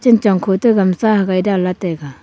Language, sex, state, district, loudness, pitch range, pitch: Wancho, female, Arunachal Pradesh, Longding, -15 LUFS, 180-215 Hz, 195 Hz